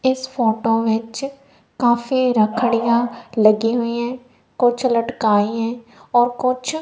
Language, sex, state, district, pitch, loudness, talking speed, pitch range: Hindi, female, Punjab, Kapurthala, 235 Hz, -19 LUFS, 115 wpm, 230-255 Hz